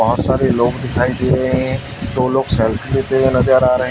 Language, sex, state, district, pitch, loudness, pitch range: Hindi, male, Chhattisgarh, Raipur, 130 Hz, -16 LUFS, 125-130 Hz